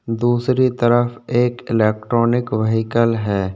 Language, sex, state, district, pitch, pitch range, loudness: Hindi, male, Chhattisgarh, Korba, 115 Hz, 110-120 Hz, -18 LUFS